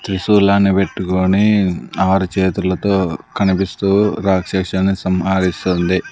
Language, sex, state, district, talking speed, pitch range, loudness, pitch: Telugu, male, Andhra Pradesh, Sri Satya Sai, 70 wpm, 95-100 Hz, -16 LUFS, 95 Hz